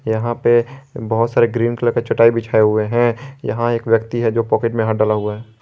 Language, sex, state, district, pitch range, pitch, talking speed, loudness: Hindi, male, Jharkhand, Garhwa, 110-120 Hz, 115 Hz, 235 wpm, -17 LUFS